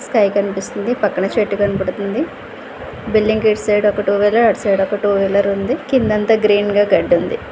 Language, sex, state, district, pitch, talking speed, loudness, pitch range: Telugu, female, Andhra Pradesh, Chittoor, 205 Hz, 190 wpm, -16 LUFS, 200-220 Hz